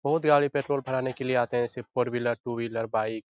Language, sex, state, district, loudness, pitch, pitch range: Hindi, male, Bihar, Jahanabad, -27 LUFS, 125 Hz, 120-135 Hz